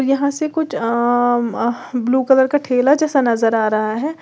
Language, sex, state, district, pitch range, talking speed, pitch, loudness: Hindi, female, Uttar Pradesh, Lalitpur, 235-280 Hz, 185 wpm, 255 Hz, -17 LUFS